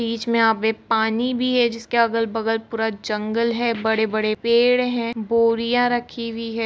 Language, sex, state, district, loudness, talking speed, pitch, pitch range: Hindi, female, Bihar, Kishanganj, -21 LUFS, 170 wpm, 230 Hz, 225-235 Hz